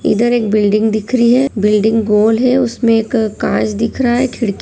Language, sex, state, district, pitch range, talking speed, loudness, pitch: Hindi, female, Chhattisgarh, Rajnandgaon, 215-240 Hz, 210 wpm, -13 LUFS, 225 Hz